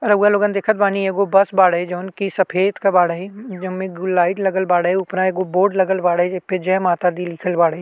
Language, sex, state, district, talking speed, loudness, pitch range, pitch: Bhojpuri, male, Uttar Pradesh, Ghazipur, 230 wpm, -18 LUFS, 180-195 Hz, 185 Hz